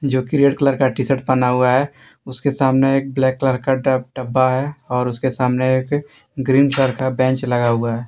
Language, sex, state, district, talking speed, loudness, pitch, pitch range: Hindi, male, Jharkhand, Deoghar, 215 wpm, -18 LUFS, 130 Hz, 130-135 Hz